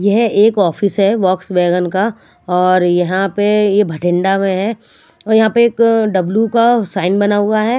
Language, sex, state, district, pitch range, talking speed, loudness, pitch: Hindi, female, Punjab, Fazilka, 185-220 Hz, 190 wpm, -14 LUFS, 205 Hz